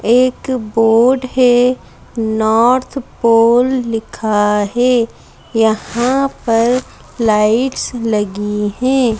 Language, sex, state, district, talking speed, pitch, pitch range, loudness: Hindi, female, Madhya Pradesh, Bhopal, 80 wpm, 235 Hz, 220-255 Hz, -14 LUFS